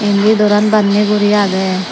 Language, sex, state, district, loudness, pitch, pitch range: Chakma, female, Tripura, Dhalai, -12 LUFS, 210 Hz, 200-210 Hz